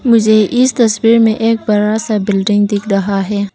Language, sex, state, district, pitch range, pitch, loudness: Hindi, female, Arunachal Pradesh, Papum Pare, 205-230 Hz, 215 Hz, -12 LUFS